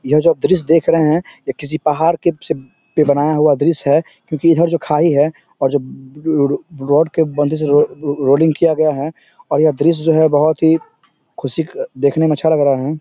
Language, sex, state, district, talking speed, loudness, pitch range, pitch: Hindi, male, Bihar, Samastipur, 235 wpm, -15 LUFS, 145-165 Hz, 155 Hz